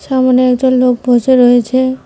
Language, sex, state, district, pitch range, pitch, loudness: Bengali, female, West Bengal, Cooch Behar, 245-260 Hz, 255 Hz, -10 LUFS